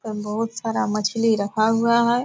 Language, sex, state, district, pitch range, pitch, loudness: Hindi, female, Bihar, Purnia, 210-230 Hz, 225 Hz, -21 LUFS